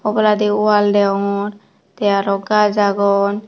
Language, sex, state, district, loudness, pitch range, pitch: Chakma, female, Tripura, Dhalai, -16 LUFS, 200-210 Hz, 205 Hz